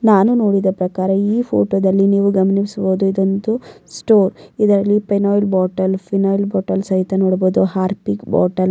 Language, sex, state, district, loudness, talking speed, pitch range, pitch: Kannada, female, Karnataka, Mysore, -16 LUFS, 130 wpm, 190-200 Hz, 195 Hz